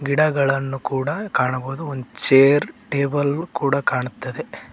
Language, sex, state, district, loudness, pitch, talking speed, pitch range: Kannada, male, Karnataka, Koppal, -20 LUFS, 140 Hz, 100 wpm, 135-145 Hz